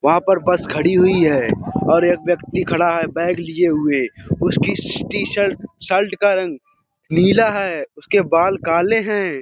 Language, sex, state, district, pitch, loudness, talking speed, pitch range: Hindi, male, Uttar Pradesh, Budaun, 175 Hz, -17 LUFS, 160 wpm, 165-195 Hz